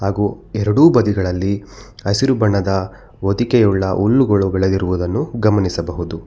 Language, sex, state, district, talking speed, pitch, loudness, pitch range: Kannada, male, Karnataka, Bangalore, 85 wpm, 100 Hz, -17 LUFS, 95-110 Hz